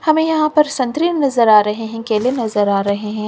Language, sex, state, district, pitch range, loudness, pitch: Hindi, female, Chhattisgarh, Kabirdham, 215-300 Hz, -16 LUFS, 235 Hz